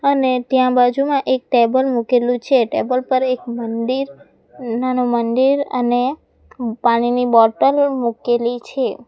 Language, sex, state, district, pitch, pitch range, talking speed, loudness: Gujarati, female, Gujarat, Valsad, 250 Hz, 240-260 Hz, 120 wpm, -17 LUFS